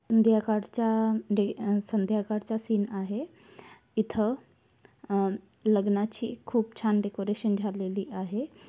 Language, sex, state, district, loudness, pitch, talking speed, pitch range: Marathi, female, Maharashtra, Aurangabad, -29 LUFS, 215 Hz, 95 wpm, 205-225 Hz